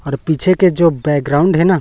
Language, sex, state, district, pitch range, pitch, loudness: Hindi, male, Chhattisgarh, Raipur, 145-185 Hz, 165 Hz, -13 LUFS